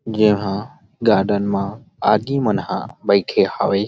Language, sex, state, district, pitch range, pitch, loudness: Chhattisgarhi, male, Chhattisgarh, Rajnandgaon, 100-110 Hz, 105 Hz, -19 LUFS